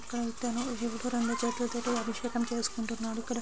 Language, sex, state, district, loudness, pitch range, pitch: Telugu, female, Andhra Pradesh, Srikakulam, -33 LUFS, 230-245 Hz, 235 Hz